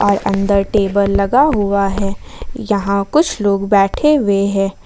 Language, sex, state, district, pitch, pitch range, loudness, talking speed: Hindi, female, Jharkhand, Ranchi, 200 Hz, 195-210 Hz, -15 LUFS, 150 wpm